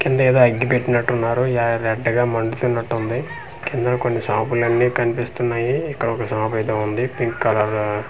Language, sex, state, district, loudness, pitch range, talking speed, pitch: Telugu, male, Andhra Pradesh, Manyam, -20 LUFS, 115-125 Hz, 140 wpm, 120 Hz